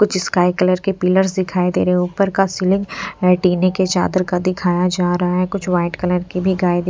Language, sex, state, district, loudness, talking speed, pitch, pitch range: Hindi, female, Punjab, Pathankot, -17 LUFS, 245 wpm, 180 Hz, 180-190 Hz